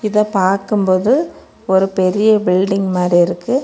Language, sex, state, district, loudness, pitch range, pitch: Tamil, female, Tamil Nadu, Kanyakumari, -15 LUFS, 185-210 Hz, 195 Hz